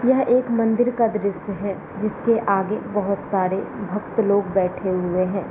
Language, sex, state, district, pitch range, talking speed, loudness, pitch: Hindi, female, Bihar, Gopalganj, 190-225 Hz, 165 wpm, -22 LUFS, 200 Hz